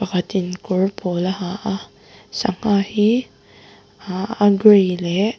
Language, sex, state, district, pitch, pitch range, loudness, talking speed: Mizo, female, Mizoram, Aizawl, 195 Hz, 185-210 Hz, -19 LUFS, 135 wpm